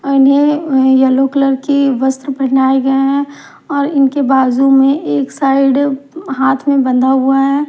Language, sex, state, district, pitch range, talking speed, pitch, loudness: Hindi, female, Maharashtra, Mumbai Suburban, 265-280 Hz, 165 wpm, 270 Hz, -12 LUFS